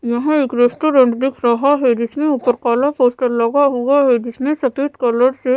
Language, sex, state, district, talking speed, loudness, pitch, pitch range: Hindi, female, Odisha, Sambalpur, 185 wpm, -15 LUFS, 255 Hz, 245-285 Hz